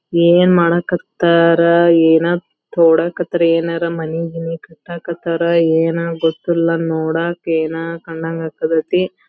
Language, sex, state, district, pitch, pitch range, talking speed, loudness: Kannada, female, Karnataka, Belgaum, 170 Hz, 165-170 Hz, 85 wpm, -15 LUFS